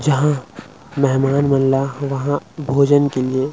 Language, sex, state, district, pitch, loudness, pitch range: Chhattisgarhi, male, Chhattisgarh, Rajnandgaon, 140 Hz, -18 LUFS, 135-145 Hz